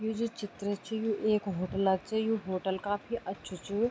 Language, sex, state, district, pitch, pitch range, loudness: Garhwali, female, Uttarakhand, Tehri Garhwal, 205 Hz, 190-220 Hz, -33 LUFS